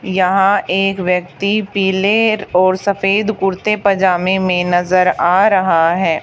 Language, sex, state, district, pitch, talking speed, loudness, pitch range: Hindi, female, Haryana, Charkhi Dadri, 190 Hz, 125 wpm, -14 LUFS, 180-200 Hz